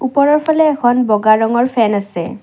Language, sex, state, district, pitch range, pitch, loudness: Assamese, female, Assam, Kamrup Metropolitan, 215-285 Hz, 240 Hz, -13 LUFS